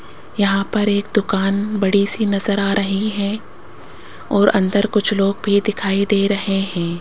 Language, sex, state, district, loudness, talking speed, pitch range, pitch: Hindi, female, Rajasthan, Jaipur, -18 LUFS, 165 wpm, 195-205 Hz, 200 Hz